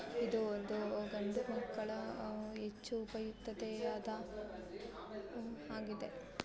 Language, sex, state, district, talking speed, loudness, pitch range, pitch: Kannada, female, Karnataka, Bellary, 65 wpm, -43 LUFS, 210-230 Hz, 220 Hz